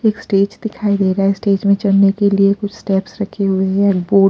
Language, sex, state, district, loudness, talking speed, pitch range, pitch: Hindi, female, Punjab, Pathankot, -15 LUFS, 240 wpm, 195-205 Hz, 200 Hz